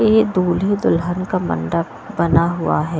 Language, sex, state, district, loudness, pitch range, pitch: Hindi, female, Punjab, Kapurthala, -18 LUFS, 165-200 Hz, 175 Hz